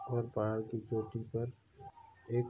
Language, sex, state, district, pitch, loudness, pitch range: Hindi, male, Uttar Pradesh, Hamirpur, 115 Hz, -38 LUFS, 110-120 Hz